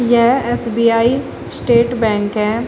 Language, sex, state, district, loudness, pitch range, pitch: Hindi, female, Uttar Pradesh, Shamli, -15 LUFS, 225-240 Hz, 235 Hz